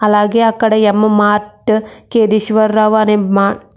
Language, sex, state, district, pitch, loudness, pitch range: Telugu, female, Andhra Pradesh, Krishna, 215 Hz, -12 LUFS, 210-220 Hz